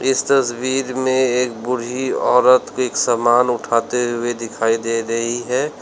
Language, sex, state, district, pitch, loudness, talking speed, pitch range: Hindi, male, Uttar Pradesh, Lalitpur, 125 Hz, -18 LUFS, 145 wpm, 120-130 Hz